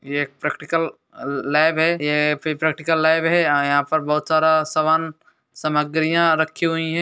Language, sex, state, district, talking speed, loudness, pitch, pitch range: Hindi, male, Uttar Pradesh, Etah, 160 wpm, -19 LUFS, 155 Hz, 150-160 Hz